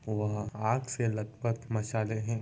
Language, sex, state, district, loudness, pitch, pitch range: Hindi, male, Uttar Pradesh, Varanasi, -33 LUFS, 110 Hz, 110-115 Hz